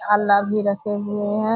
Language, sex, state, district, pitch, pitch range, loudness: Hindi, female, Bihar, Purnia, 205 Hz, 205-210 Hz, -20 LUFS